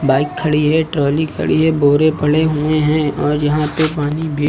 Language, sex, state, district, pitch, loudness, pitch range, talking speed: Hindi, male, Uttar Pradesh, Lucknow, 150 Hz, -15 LUFS, 145-155 Hz, 200 wpm